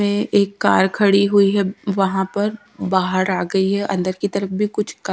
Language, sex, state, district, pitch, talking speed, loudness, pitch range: Hindi, female, Haryana, Rohtak, 200 Hz, 200 wpm, -18 LUFS, 190-205 Hz